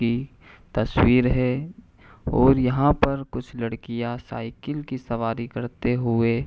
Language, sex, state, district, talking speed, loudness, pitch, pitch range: Hindi, male, Uttar Pradesh, Hamirpur, 130 wpm, -24 LUFS, 120 Hz, 115-130 Hz